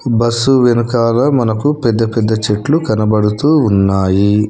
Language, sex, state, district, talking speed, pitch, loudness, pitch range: Telugu, male, Telangana, Hyderabad, 105 wpm, 115 Hz, -13 LUFS, 105-130 Hz